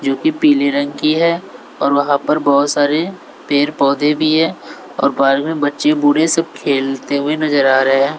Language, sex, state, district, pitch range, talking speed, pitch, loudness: Hindi, male, Bihar, West Champaran, 140-160 Hz, 200 wpm, 145 Hz, -15 LUFS